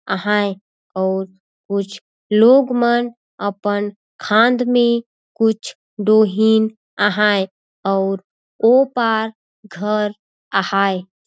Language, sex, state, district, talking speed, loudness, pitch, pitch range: Surgujia, female, Chhattisgarh, Sarguja, 85 wpm, -17 LUFS, 210 Hz, 195-225 Hz